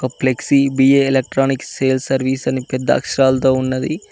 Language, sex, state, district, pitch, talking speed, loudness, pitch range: Telugu, male, Telangana, Mahabubabad, 130 Hz, 160 wpm, -16 LUFS, 130-135 Hz